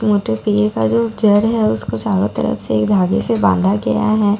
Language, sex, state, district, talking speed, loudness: Hindi, female, Bihar, Katihar, 205 wpm, -16 LUFS